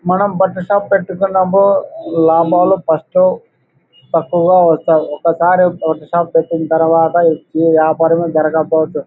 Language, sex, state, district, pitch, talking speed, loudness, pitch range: Telugu, male, Andhra Pradesh, Anantapur, 170 Hz, 105 wpm, -13 LUFS, 160-185 Hz